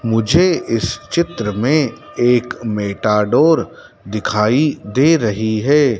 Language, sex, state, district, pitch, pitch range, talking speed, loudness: Hindi, male, Madhya Pradesh, Dhar, 115 Hz, 105-150 Hz, 100 wpm, -16 LUFS